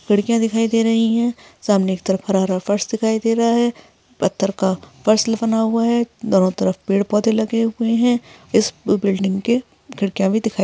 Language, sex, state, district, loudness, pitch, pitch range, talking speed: Hindi, female, Chhattisgarh, Bilaspur, -18 LUFS, 220 Hz, 195-230 Hz, 185 wpm